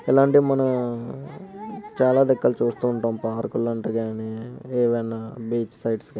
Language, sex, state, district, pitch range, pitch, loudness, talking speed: Telugu, male, Andhra Pradesh, Visakhapatnam, 115-135 Hz, 120 Hz, -23 LUFS, 115 wpm